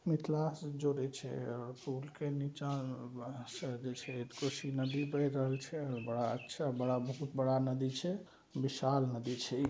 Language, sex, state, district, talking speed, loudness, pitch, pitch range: Maithili, male, Bihar, Saharsa, 165 wpm, -38 LUFS, 135 Hz, 125-145 Hz